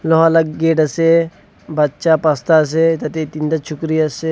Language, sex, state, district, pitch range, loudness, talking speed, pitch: Nagamese, male, Nagaland, Dimapur, 155-165 Hz, -15 LUFS, 140 wpm, 160 Hz